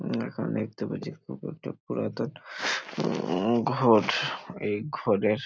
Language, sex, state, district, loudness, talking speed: Bengali, male, West Bengal, Paschim Medinipur, -28 LUFS, 120 wpm